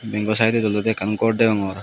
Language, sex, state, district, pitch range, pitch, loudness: Chakma, male, Tripura, West Tripura, 105-110 Hz, 110 Hz, -20 LUFS